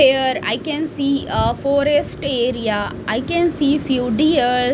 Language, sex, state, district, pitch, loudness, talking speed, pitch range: English, female, Punjab, Fazilka, 275 Hz, -18 LUFS, 165 wpm, 250-295 Hz